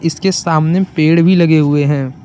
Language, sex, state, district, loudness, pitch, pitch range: Hindi, male, Jharkhand, Deoghar, -12 LUFS, 160 Hz, 150-175 Hz